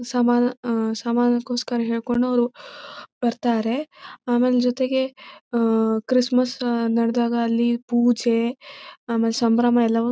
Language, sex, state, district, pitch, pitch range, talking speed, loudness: Kannada, female, Karnataka, Chamarajanagar, 240 Hz, 230-250 Hz, 90 wpm, -21 LUFS